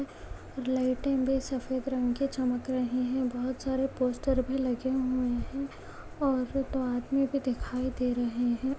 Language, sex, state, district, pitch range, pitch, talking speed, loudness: Hindi, female, Chhattisgarh, Bastar, 250-270 Hz, 260 Hz, 155 wpm, -30 LUFS